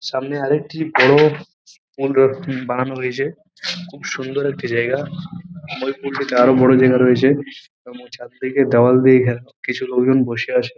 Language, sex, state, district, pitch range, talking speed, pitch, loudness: Bengali, male, West Bengal, Paschim Medinipur, 125-145 Hz, 160 wpm, 135 Hz, -17 LUFS